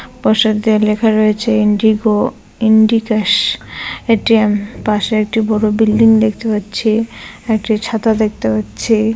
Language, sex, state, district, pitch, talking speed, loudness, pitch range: Bengali, female, West Bengal, Dakshin Dinajpur, 220 Hz, 120 wpm, -14 LUFS, 210-220 Hz